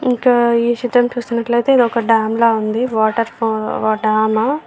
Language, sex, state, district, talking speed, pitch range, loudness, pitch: Telugu, female, Andhra Pradesh, Visakhapatnam, 140 wpm, 220-245 Hz, -15 LUFS, 235 Hz